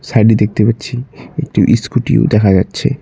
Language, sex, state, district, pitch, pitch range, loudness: Bengali, male, West Bengal, Cooch Behar, 110 Hz, 105-125 Hz, -13 LUFS